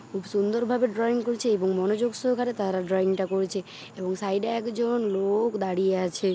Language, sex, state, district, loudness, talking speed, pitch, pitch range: Bengali, female, West Bengal, Paschim Medinipur, -26 LUFS, 205 wpm, 200 Hz, 190-235 Hz